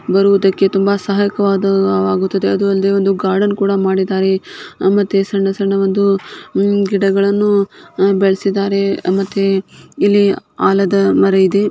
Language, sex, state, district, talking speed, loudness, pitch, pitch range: Kannada, female, Karnataka, Shimoga, 85 wpm, -14 LUFS, 195 Hz, 195-200 Hz